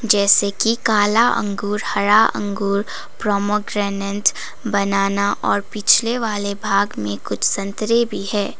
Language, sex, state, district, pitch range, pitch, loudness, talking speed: Hindi, female, Sikkim, Gangtok, 200-215 Hz, 205 Hz, -18 LUFS, 120 wpm